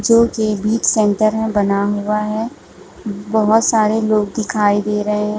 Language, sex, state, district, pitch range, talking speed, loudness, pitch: Hindi, female, Chhattisgarh, Bilaspur, 210-220 Hz, 165 wpm, -16 LUFS, 215 Hz